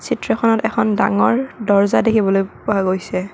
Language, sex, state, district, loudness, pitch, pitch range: Assamese, female, Assam, Kamrup Metropolitan, -17 LUFS, 205 Hz, 195-225 Hz